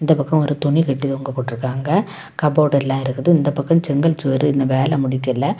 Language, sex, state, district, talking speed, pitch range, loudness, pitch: Tamil, female, Tamil Nadu, Kanyakumari, 180 wpm, 135-155 Hz, -18 LUFS, 140 Hz